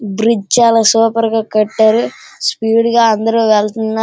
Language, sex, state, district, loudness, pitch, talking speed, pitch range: Telugu, female, Andhra Pradesh, Srikakulam, -12 LUFS, 225 Hz, 150 wpm, 220-230 Hz